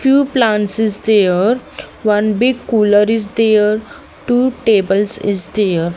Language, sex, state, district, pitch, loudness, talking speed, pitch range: English, female, Haryana, Jhajjar, 215 Hz, -14 LUFS, 130 wpm, 205-230 Hz